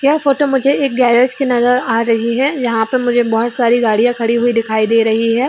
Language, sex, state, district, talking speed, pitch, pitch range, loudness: Hindi, female, Jharkhand, Sahebganj, 220 wpm, 240 Hz, 230-260 Hz, -14 LUFS